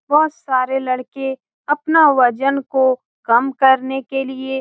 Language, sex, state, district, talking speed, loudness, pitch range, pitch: Hindi, female, Bihar, Saran, 145 wpm, -17 LUFS, 260-275 Hz, 265 Hz